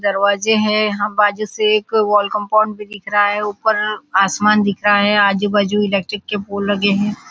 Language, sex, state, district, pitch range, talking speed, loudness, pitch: Hindi, female, Maharashtra, Nagpur, 205-210 Hz, 180 wpm, -16 LUFS, 205 Hz